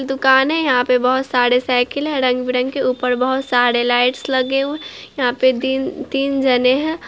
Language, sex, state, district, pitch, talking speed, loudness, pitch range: Hindi, female, Bihar, Araria, 260 Hz, 180 wpm, -17 LUFS, 250-270 Hz